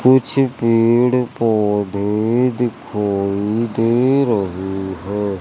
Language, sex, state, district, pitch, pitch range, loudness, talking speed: Hindi, male, Madhya Pradesh, Umaria, 110 Hz, 100-120 Hz, -17 LUFS, 80 wpm